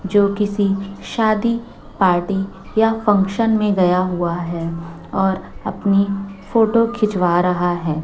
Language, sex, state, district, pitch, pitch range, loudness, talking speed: Hindi, female, Chhattisgarh, Raipur, 195 Hz, 180-210 Hz, -18 LUFS, 120 wpm